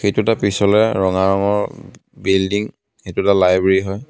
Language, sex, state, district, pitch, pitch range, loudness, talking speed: Assamese, male, Assam, Kamrup Metropolitan, 100 Hz, 95-105 Hz, -17 LUFS, 145 wpm